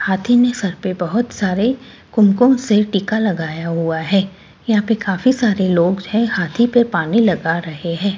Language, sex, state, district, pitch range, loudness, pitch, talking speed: Hindi, female, Delhi, New Delhi, 175-230 Hz, -17 LUFS, 200 Hz, 175 wpm